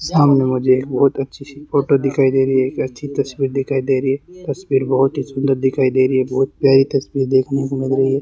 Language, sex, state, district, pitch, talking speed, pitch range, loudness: Hindi, male, Rajasthan, Bikaner, 135 Hz, 250 wpm, 130-140 Hz, -17 LUFS